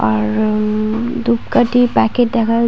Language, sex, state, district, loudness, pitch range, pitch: Bengali, female, West Bengal, Paschim Medinipur, -15 LUFS, 215-240 Hz, 230 Hz